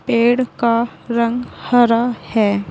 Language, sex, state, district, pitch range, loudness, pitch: Hindi, female, Uttar Pradesh, Saharanpur, 230-240 Hz, -17 LUFS, 235 Hz